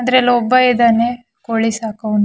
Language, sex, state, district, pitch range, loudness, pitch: Kannada, female, Karnataka, Shimoga, 225-245 Hz, -15 LUFS, 235 Hz